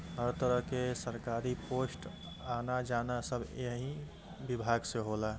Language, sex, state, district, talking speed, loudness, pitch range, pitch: Hindi, male, Uttar Pradesh, Gorakhpur, 120 wpm, -37 LUFS, 120-125 Hz, 125 Hz